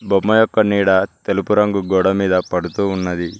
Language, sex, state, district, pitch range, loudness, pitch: Telugu, male, Telangana, Mahabubabad, 95-105 Hz, -17 LUFS, 100 Hz